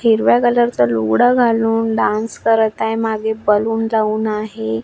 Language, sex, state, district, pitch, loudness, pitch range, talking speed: Marathi, female, Maharashtra, Washim, 220 Hz, -16 LUFS, 215-225 Hz, 150 wpm